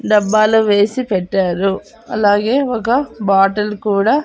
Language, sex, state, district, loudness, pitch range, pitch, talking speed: Telugu, female, Andhra Pradesh, Annamaya, -15 LUFS, 195-225 Hz, 210 Hz, 100 wpm